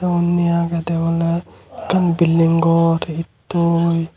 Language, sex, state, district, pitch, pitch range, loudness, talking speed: Chakma, male, Tripura, Unakoti, 170 Hz, 165-170 Hz, -17 LUFS, 145 wpm